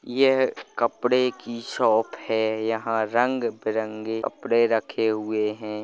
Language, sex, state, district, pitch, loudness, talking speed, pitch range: Hindi, male, Chhattisgarh, Rajnandgaon, 115 Hz, -24 LUFS, 115 wpm, 110-120 Hz